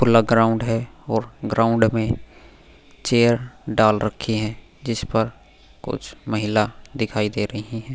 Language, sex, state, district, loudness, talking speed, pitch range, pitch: Hindi, male, Goa, North and South Goa, -22 LUFS, 145 wpm, 110-115 Hz, 110 Hz